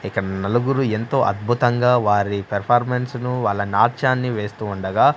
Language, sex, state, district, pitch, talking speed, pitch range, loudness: Telugu, male, Andhra Pradesh, Manyam, 115 Hz, 130 wpm, 100-125 Hz, -20 LUFS